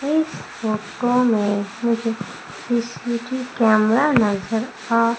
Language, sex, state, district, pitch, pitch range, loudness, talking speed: Hindi, female, Madhya Pradesh, Umaria, 230 Hz, 215-245 Hz, -21 LUFS, 95 wpm